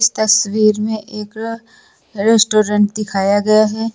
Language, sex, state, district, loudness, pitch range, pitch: Hindi, female, Uttar Pradesh, Lucknow, -15 LUFS, 210-220 Hz, 215 Hz